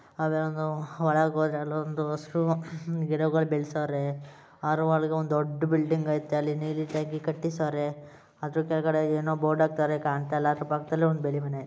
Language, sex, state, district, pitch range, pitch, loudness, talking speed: Kannada, male, Karnataka, Mysore, 150-160 Hz, 155 Hz, -28 LUFS, 135 wpm